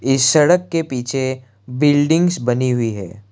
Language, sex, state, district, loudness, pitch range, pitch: Hindi, male, Assam, Kamrup Metropolitan, -17 LUFS, 125-150 Hz, 130 Hz